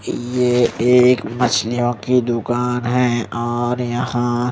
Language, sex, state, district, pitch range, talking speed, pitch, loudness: Hindi, male, Bihar, Patna, 120-125 Hz, 105 wpm, 120 Hz, -18 LUFS